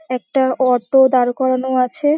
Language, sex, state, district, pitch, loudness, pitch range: Bengali, female, West Bengal, Paschim Medinipur, 260 Hz, -16 LUFS, 255-265 Hz